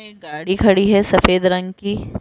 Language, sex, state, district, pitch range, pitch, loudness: Hindi, female, Rajasthan, Jaipur, 185-200 Hz, 190 Hz, -16 LUFS